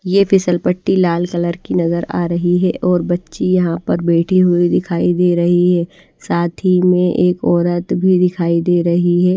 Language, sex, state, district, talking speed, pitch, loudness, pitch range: Hindi, female, Odisha, Malkangiri, 190 wpm, 175 Hz, -15 LUFS, 170-180 Hz